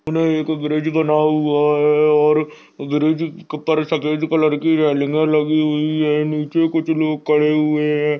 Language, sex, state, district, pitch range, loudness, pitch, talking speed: Hindi, male, Chhattisgarh, Sarguja, 150-155 Hz, -17 LUFS, 155 Hz, 170 wpm